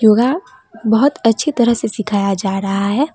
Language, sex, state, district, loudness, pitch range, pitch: Hindi, female, West Bengal, Alipurduar, -16 LUFS, 205-260 Hz, 225 Hz